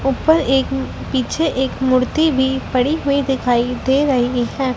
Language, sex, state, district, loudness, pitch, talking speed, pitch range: Hindi, female, Madhya Pradesh, Dhar, -17 LUFS, 265 Hz, 150 wpm, 255-280 Hz